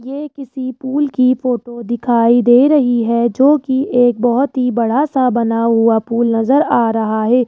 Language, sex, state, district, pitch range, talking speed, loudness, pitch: Hindi, male, Rajasthan, Jaipur, 235-265 Hz, 185 wpm, -14 LUFS, 245 Hz